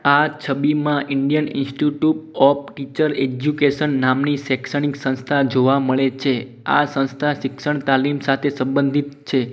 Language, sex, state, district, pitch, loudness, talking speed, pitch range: Gujarati, male, Gujarat, Gandhinagar, 140 Hz, -19 LUFS, 125 wpm, 135-145 Hz